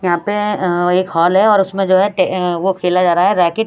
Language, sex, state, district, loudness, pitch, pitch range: Hindi, female, Haryana, Rohtak, -14 LUFS, 185 Hz, 175-195 Hz